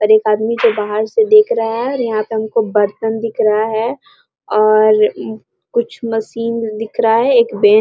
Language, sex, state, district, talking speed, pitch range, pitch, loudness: Hindi, female, Bihar, Araria, 200 wpm, 215-240 Hz, 225 Hz, -15 LUFS